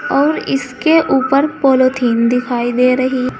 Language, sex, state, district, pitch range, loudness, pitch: Hindi, female, Uttar Pradesh, Saharanpur, 250-275 Hz, -14 LUFS, 260 Hz